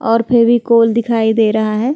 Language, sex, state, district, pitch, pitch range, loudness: Hindi, female, Bihar, Vaishali, 230 Hz, 220-235 Hz, -13 LUFS